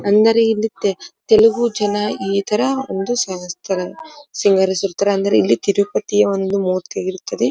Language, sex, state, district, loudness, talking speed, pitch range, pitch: Kannada, female, Karnataka, Dharwad, -17 LUFS, 105 wpm, 195-225 Hz, 200 Hz